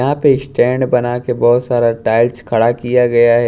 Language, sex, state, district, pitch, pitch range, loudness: Hindi, male, Maharashtra, Washim, 120 Hz, 120-125 Hz, -14 LUFS